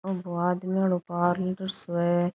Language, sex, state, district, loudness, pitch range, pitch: Rajasthani, female, Rajasthan, Churu, -27 LUFS, 175-185 Hz, 180 Hz